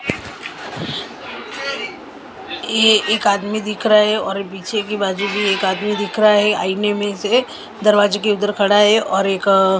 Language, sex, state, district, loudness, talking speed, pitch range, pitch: Hindi, female, Maharashtra, Mumbai Suburban, -17 LUFS, 160 wpm, 200-215 Hz, 205 Hz